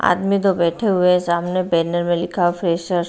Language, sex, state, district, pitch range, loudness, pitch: Hindi, female, Bihar, Katihar, 170-185 Hz, -18 LUFS, 175 Hz